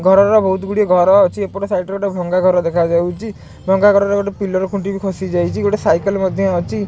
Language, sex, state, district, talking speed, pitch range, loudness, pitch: Odia, male, Odisha, Khordha, 235 wpm, 185-200 Hz, -15 LUFS, 195 Hz